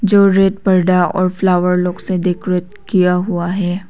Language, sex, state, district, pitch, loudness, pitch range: Hindi, female, Arunachal Pradesh, Papum Pare, 185 Hz, -15 LUFS, 180-195 Hz